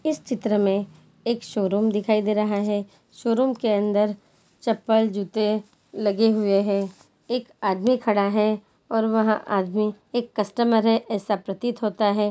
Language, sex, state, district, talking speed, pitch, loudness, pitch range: Hindi, female, Bihar, Jahanabad, 150 wpm, 210 Hz, -23 LUFS, 205-225 Hz